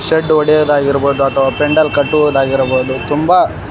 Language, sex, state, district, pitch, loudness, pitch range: Kannada, male, Karnataka, Koppal, 145 Hz, -12 LUFS, 135-155 Hz